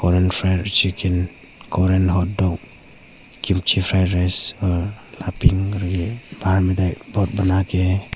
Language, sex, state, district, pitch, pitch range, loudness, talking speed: Hindi, male, Arunachal Pradesh, Papum Pare, 95 Hz, 90-95 Hz, -20 LUFS, 130 wpm